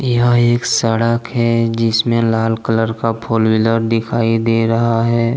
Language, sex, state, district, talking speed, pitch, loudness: Hindi, male, Jharkhand, Deoghar, 155 wpm, 115 Hz, -15 LUFS